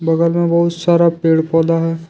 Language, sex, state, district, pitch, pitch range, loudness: Hindi, male, Jharkhand, Deoghar, 165 Hz, 165-170 Hz, -14 LUFS